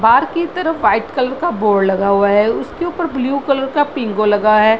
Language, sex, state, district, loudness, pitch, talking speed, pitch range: Hindi, female, Bihar, Madhepura, -15 LUFS, 255 Hz, 225 wpm, 210-310 Hz